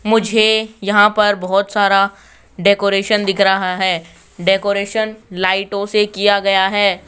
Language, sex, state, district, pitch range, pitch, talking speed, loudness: Hindi, male, Rajasthan, Jaipur, 195-210 Hz, 200 Hz, 125 wpm, -15 LUFS